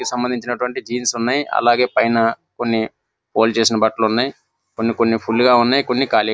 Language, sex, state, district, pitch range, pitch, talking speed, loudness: Telugu, male, Andhra Pradesh, Visakhapatnam, 115-125 Hz, 120 Hz, 190 wpm, -18 LUFS